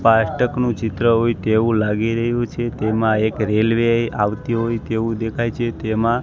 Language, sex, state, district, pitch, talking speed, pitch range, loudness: Gujarati, male, Gujarat, Gandhinagar, 115 Hz, 155 wpm, 110-115 Hz, -19 LUFS